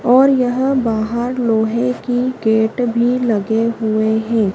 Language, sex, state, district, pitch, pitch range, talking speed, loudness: Hindi, female, Madhya Pradesh, Dhar, 235 Hz, 220-250 Hz, 130 wpm, -16 LUFS